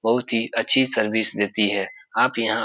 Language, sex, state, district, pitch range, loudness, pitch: Hindi, male, Bihar, Supaul, 105-115 Hz, -21 LUFS, 110 Hz